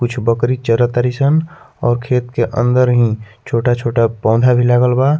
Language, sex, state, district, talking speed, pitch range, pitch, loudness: Bhojpuri, male, Bihar, Muzaffarpur, 170 wpm, 115-125 Hz, 120 Hz, -15 LUFS